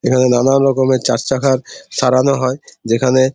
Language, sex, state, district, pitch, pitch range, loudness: Bengali, male, West Bengal, Purulia, 130 Hz, 130-135 Hz, -15 LUFS